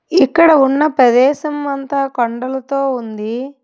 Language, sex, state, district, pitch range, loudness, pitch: Telugu, female, Telangana, Hyderabad, 250-285 Hz, -14 LUFS, 270 Hz